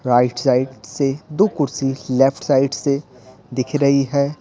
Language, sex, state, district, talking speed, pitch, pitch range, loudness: Hindi, male, Bihar, Patna, 150 wpm, 135 Hz, 130-140 Hz, -19 LUFS